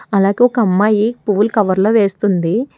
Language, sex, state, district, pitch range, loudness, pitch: Telugu, female, Telangana, Hyderabad, 200-225 Hz, -14 LUFS, 210 Hz